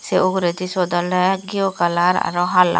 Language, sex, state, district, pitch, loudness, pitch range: Chakma, female, Tripura, Dhalai, 180 Hz, -18 LUFS, 175-185 Hz